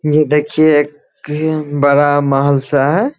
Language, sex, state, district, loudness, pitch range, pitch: Hindi, male, Bihar, Sitamarhi, -13 LUFS, 145-150 Hz, 150 Hz